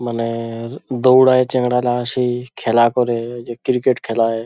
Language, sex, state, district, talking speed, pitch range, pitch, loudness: Bengali, male, West Bengal, Dakshin Dinajpur, 120 wpm, 115-125 Hz, 120 Hz, -17 LUFS